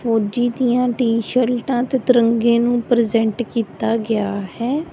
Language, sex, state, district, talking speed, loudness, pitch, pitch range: Punjabi, female, Punjab, Kapurthala, 120 wpm, -18 LUFS, 235 Hz, 230-245 Hz